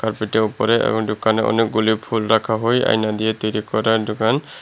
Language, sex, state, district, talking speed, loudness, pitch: Bengali, male, Tripura, Unakoti, 180 wpm, -19 LUFS, 110 Hz